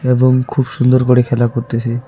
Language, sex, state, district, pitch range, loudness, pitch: Bengali, male, West Bengal, Alipurduar, 120-130 Hz, -14 LUFS, 125 Hz